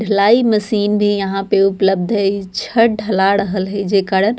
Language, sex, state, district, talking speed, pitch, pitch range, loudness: Bajjika, female, Bihar, Vaishali, 205 wpm, 200 Hz, 195-210 Hz, -15 LUFS